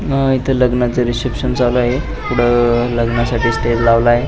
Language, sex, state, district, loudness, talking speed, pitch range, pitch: Marathi, male, Maharashtra, Pune, -15 LUFS, 140 wpm, 120-125 Hz, 120 Hz